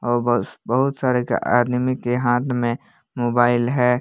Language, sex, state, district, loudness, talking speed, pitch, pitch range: Hindi, male, Jharkhand, Palamu, -20 LUFS, 150 wpm, 120 Hz, 120-125 Hz